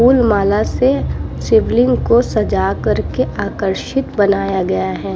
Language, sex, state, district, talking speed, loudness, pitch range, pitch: Hindi, female, Uttar Pradesh, Muzaffarnagar, 115 wpm, -16 LUFS, 200-250 Hz, 220 Hz